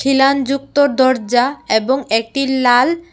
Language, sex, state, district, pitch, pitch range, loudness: Bengali, female, Tripura, West Tripura, 270 Hz, 245-275 Hz, -15 LUFS